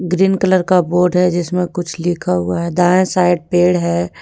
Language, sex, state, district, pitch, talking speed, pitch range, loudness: Hindi, female, Jharkhand, Deoghar, 175 Hz, 200 wpm, 175-180 Hz, -15 LUFS